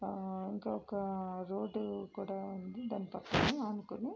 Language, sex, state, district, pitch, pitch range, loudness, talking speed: Telugu, female, Andhra Pradesh, Srikakulam, 195 Hz, 190-210 Hz, -39 LUFS, 115 wpm